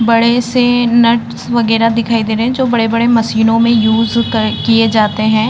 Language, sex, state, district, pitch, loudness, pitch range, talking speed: Hindi, female, Uttar Pradesh, Varanasi, 230 Hz, -12 LUFS, 225-235 Hz, 185 wpm